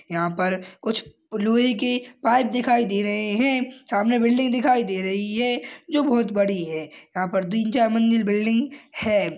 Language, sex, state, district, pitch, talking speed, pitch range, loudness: Hindi, male, Chhattisgarh, Kabirdham, 225 Hz, 175 wpm, 195-245 Hz, -22 LUFS